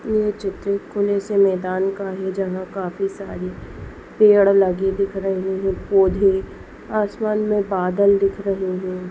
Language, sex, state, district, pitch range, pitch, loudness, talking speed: Hindi, female, Maharashtra, Solapur, 190-200 Hz, 195 Hz, -20 LUFS, 145 wpm